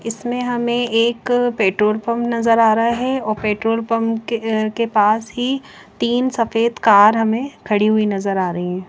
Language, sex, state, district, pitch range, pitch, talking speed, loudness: Hindi, female, Chandigarh, Chandigarh, 215-235 Hz, 230 Hz, 175 wpm, -17 LUFS